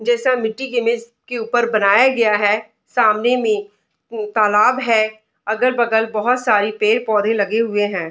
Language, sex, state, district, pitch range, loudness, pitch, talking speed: Hindi, female, Bihar, Darbhanga, 210-240 Hz, -17 LUFS, 220 Hz, 155 wpm